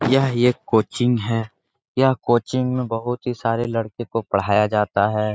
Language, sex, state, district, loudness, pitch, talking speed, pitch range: Hindi, male, Bihar, Jahanabad, -21 LUFS, 115 Hz, 180 wpm, 110-125 Hz